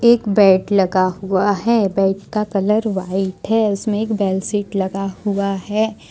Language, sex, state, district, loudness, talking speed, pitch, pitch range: Hindi, female, Jharkhand, Ranchi, -18 LUFS, 155 wpm, 200 Hz, 190-215 Hz